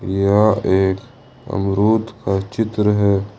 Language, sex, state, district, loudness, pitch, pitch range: Hindi, male, Jharkhand, Ranchi, -18 LUFS, 105 Hz, 95-110 Hz